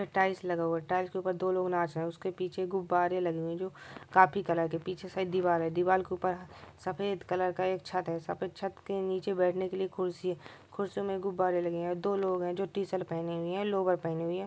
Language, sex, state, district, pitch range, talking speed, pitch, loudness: Maithili, male, Bihar, Supaul, 175-190 Hz, 255 wpm, 185 Hz, -32 LUFS